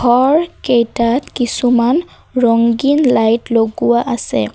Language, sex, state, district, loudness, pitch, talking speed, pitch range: Assamese, female, Assam, Kamrup Metropolitan, -14 LUFS, 240 Hz, 80 wpm, 230-260 Hz